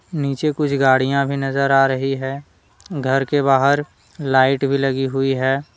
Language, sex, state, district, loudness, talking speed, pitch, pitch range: Hindi, male, Jharkhand, Deoghar, -18 LUFS, 165 wpm, 135 Hz, 135-140 Hz